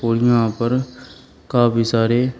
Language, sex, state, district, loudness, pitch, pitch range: Hindi, male, Uttar Pradesh, Shamli, -18 LUFS, 120 Hz, 115-120 Hz